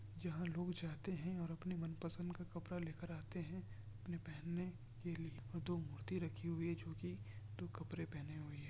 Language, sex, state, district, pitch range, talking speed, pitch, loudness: Urdu, male, Bihar, Kishanganj, 105-175 Hz, 205 wpm, 160 Hz, -47 LUFS